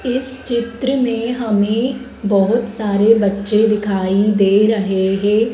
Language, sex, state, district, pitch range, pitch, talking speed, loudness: Hindi, female, Madhya Pradesh, Dhar, 200-235 Hz, 220 Hz, 120 wpm, -16 LUFS